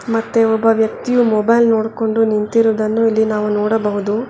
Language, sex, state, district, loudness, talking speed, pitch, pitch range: Kannada, female, Karnataka, Bangalore, -15 LUFS, 125 wpm, 220 Hz, 215-225 Hz